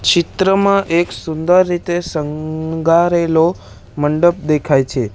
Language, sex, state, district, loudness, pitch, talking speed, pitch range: Gujarati, male, Gujarat, Valsad, -15 LUFS, 165 Hz, 95 wpm, 150-175 Hz